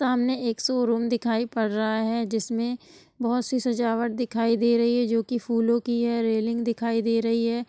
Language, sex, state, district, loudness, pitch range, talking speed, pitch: Hindi, female, Bihar, Gopalganj, -25 LUFS, 230-240 Hz, 205 wpm, 235 Hz